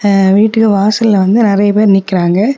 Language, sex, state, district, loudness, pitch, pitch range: Tamil, female, Tamil Nadu, Kanyakumari, -10 LUFS, 205 Hz, 195-215 Hz